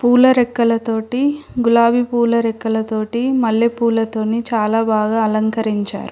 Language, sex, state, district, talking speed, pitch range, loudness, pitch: Telugu, female, Telangana, Hyderabad, 90 wpm, 220-240 Hz, -17 LUFS, 230 Hz